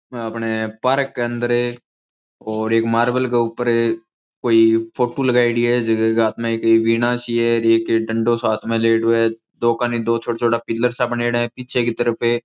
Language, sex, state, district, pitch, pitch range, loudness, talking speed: Rajasthani, male, Rajasthan, Churu, 115 Hz, 115-120 Hz, -19 LUFS, 200 wpm